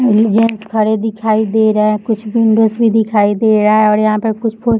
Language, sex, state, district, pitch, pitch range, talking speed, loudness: Hindi, female, Bihar, Jahanabad, 220 Hz, 215-225 Hz, 210 wpm, -13 LUFS